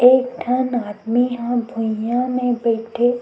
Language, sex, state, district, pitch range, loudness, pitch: Chhattisgarhi, female, Chhattisgarh, Sukma, 230-250 Hz, -20 LUFS, 245 Hz